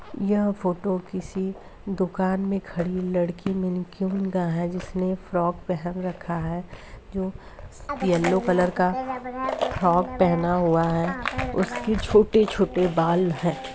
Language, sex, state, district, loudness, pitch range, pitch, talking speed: Hindi, female, Uttar Pradesh, Deoria, -25 LUFS, 175-195 Hz, 185 Hz, 120 wpm